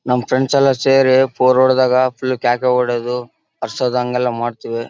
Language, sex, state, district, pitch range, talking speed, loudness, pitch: Kannada, male, Karnataka, Bellary, 125-130 Hz, 135 wpm, -15 LUFS, 125 Hz